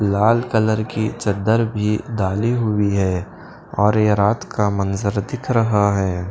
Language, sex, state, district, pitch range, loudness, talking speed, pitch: Hindi, male, Punjab, Pathankot, 100-110 Hz, -19 LUFS, 150 wpm, 105 Hz